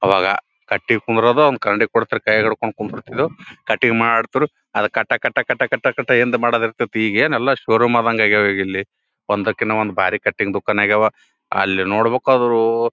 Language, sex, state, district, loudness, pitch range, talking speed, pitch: Kannada, male, Karnataka, Gulbarga, -17 LUFS, 105-120 Hz, 160 wpm, 115 Hz